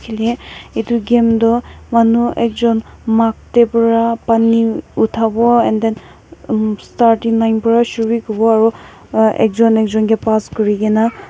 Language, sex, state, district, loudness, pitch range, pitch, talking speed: Nagamese, female, Nagaland, Kohima, -14 LUFS, 220-230 Hz, 225 Hz, 140 wpm